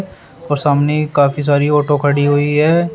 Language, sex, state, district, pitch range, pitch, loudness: Hindi, male, Uttar Pradesh, Shamli, 145-150 Hz, 145 Hz, -14 LUFS